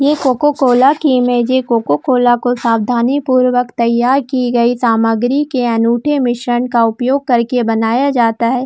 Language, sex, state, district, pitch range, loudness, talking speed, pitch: Hindi, female, Jharkhand, Jamtara, 235-260 Hz, -13 LUFS, 165 wpm, 245 Hz